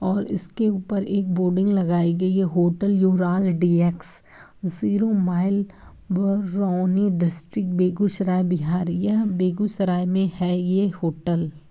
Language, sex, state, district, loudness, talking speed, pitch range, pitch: Hindi, female, Bihar, Begusarai, -22 LUFS, 125 wpm, 175-195 Hz, 185 Hz